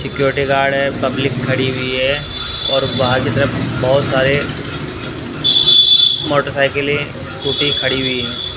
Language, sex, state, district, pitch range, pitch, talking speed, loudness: Hindi, male, Rajasthan, Bikaner, 130-140 Hz, 135 Hz, 120 wpm, -13 LUFS